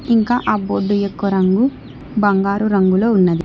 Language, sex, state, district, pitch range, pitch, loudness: Telugu, female, Telangana, Hyderabad, 195-215 Hz, 200 Hz, -16 LUFS